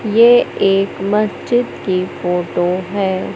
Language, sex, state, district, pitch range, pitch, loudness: Hindi, male, Madhya Pradesh, Katni, 185-215 Hz, 195 Hz, -16 LUFS